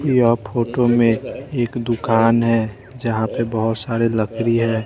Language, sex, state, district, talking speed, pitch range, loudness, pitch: Hindi, male, Bihar, West Champaran, 150 wpm, 115-120 Hz, -19 LUFS, 115 Hz